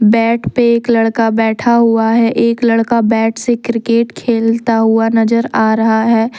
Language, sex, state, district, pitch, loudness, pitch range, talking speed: Hindi, female, Jharkhand, Deoghar, 230 Hz, -12 LUFS, 225-235 Hz, 170 wpm